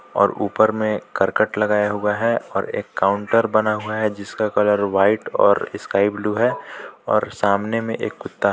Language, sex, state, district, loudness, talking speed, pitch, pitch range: Hindi, male, Jharkhand, Palamu, -20 LUFS, 185 wpm, 105 Hz, 100-110 Hz